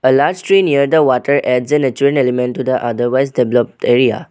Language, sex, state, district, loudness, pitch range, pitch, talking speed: English, male, Assam, Sonitpur, -14 LUFS, 125-140 Hz, 130 Hz, 155 wpm